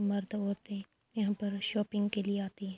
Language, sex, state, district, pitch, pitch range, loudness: Urdu, female, Andhra Pradesh, Anantapur, 205 Hz, 200-205 Hz, -35 LUFS